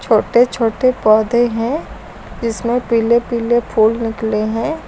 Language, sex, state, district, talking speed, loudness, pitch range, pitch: Hindi, female, Uttar Pradesh, Lucknow, 125 wpm, -16 LUFS, 225-240 Hz, 235 Hz